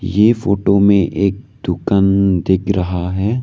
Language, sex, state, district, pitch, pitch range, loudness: Hindi, male, Arunachal Pradesh, Lower Dibang Valley, 100 Hz, 95-100 Hz, -15 LUFS